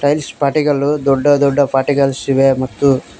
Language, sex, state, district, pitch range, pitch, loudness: Kannada, male, Karnataka, Koppal, 135-145 Hz, 140 Hz, -14 LUFS